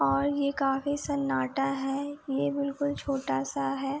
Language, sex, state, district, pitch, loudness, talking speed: Hindi, female, Uttar Pradesh, Etah, 275 Hz, -30 LUFS, 120 wpm